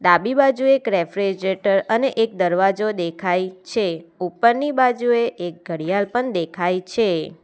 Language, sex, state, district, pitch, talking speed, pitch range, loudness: Gujarati, female, Gujarat, Valsad, 190 Hz, 130 wpm, 175-235 Hz, -20 LUFS